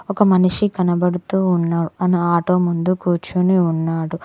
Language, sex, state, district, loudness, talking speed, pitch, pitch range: Telugu, female, Telangana, Mahabubabad, -18 LUFS, 125 wpm, 180 Hz, 170-185 Hz